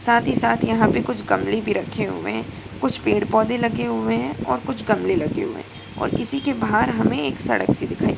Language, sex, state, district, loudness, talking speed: Hindi, female, Bihar, Purnia, -21 LUFS, 240 wpm